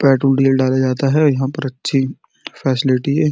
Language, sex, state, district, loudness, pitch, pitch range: Hindi, male, Uttar Pradesh, Muzaffarnagar, -16 LUFS, 135 Hz, 130-140 Hz